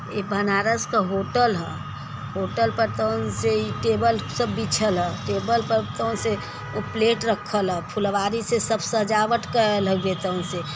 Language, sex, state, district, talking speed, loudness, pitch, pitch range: Bhojpuri, female, Uttar Pradesh, Varanasi, 150 wpm, -23 LUFS, 200 Hz, 145-225 Hz